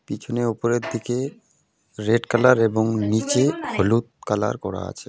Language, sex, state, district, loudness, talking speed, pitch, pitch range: Bengali, male, West Bengal, Alipurduar, -22 LUFS, 130 wpm, 115 Hz, 105-125 Hz